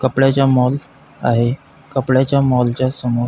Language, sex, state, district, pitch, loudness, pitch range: Marathi, male, Maharashtra, Pune, 130 Hz, -16 LUFS, 125-135 Hz